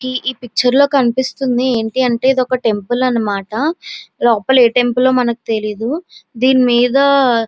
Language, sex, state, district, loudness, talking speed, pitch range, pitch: Telugu, female, Andhra Pradesh, Visakhapatnam, -14 LUFS, 155 wpm, 235-265 Hz, 250 Hz